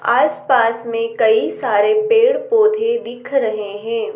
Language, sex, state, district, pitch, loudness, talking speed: Hindi, female, Madhya Pradesh, Dhar, 235 Hz, -16 LUFS, 130 wpm